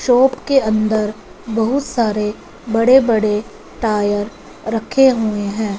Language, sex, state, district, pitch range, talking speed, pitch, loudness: Hindi, female, Punjab, Fazilka, 210-250 Hz, 105 wpm, 225 Hz, -16 LUFS